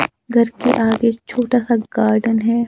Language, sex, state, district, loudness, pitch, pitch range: Hindi, male, Himachal Pradesh, Shimla, -17 LUFS, 235 Hz, 225-235 Hz